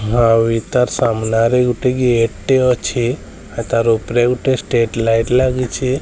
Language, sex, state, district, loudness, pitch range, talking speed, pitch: Odia, male, Odisha, Sambalpur, -15 LUFS, 115-125 Hz, 140 wpm, 120 Hz